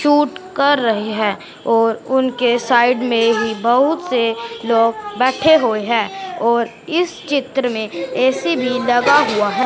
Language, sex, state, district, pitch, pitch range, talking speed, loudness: Hindi, female, Punjab, Fazilka, 240 Hz, 225-265 Hz, 150 wpm, -16 LUFS